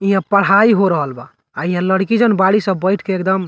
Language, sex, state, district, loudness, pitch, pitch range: Bhojpuri, male, Bihar, Muzaffarpur, -15 LUFS, 190 Hz, 180-200 Hz